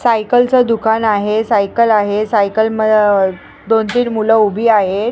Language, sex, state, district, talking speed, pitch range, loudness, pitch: Marathi, female, Maharashtra, Mumbai Suburban, 140 wpm, 210-230 Hz, -13 LUFS, 220 Hz